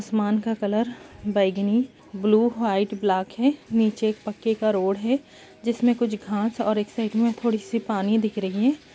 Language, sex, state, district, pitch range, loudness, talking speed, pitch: Hindi, female, Bihar, Kishanganj, 205-230 Hz, -24 LUFS, 180 wpm, 220 Hz